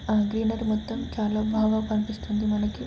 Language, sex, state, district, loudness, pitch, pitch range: Telugu, female, Andhra Pradesh, Chittoor, -26 LUFS, 215 Hz, 215-220 Hz